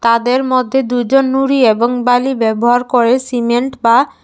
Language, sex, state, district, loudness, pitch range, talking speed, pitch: Bengali, female, Tripura, West Tripura, -13 LUFS, 235-260 Hz, 140 wpm, 245 Hz